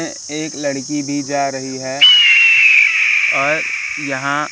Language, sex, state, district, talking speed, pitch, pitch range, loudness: Hindi, male, Madhya Pradesh, Katni, 105 wpm, 140 Hz, 135-145 Hz, -12 LUFS